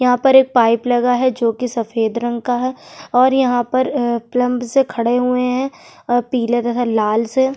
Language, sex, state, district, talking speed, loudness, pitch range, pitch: Hindi, female, Chhattisgarh, Sukma, 205 wpm, -17 LUFS, 240-255 Hz, 245 Hz